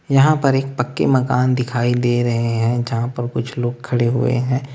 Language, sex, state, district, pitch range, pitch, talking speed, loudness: Hindi, male, Uttar Pradesh, Lalitpur, 120-130 Hz, 125 Hz, 200 wpm, -18 LUFS